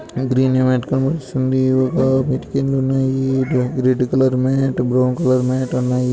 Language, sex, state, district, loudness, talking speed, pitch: Telugu, male, Andhra Pradesh, Anantapur, -17 LUFS, 125 wpm, 130 Hz